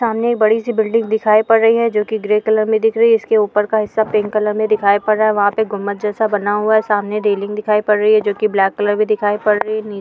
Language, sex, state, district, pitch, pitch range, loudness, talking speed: Hindi, female, Uttar Pradesh, Etah, 215 Hz, 210-220 Hz, -15 LUFS, 295 wpm